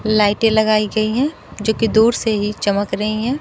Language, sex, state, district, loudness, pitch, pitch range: Hindi, female, Bihar, Kaimur, -17 LUFS, 215 Hz, 210-225 Hz